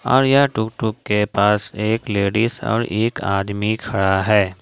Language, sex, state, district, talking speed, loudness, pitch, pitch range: Hindi, male, Jharkhand, Ranchi, 170 wpm, -19 LUFS, 105 Hz, 100-115 Hz